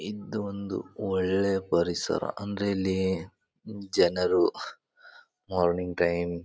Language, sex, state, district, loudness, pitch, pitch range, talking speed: Kannada, male, Karnataka, Bijapur, -28 LUFS, 100 Hz, 90-105 Hz, 95 wpm